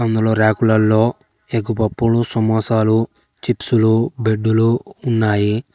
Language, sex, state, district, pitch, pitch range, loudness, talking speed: Telugu, male, Telangana, Hyderabad, 110 Hz, 110-115 Hz, -17 LUFS, 75 wpm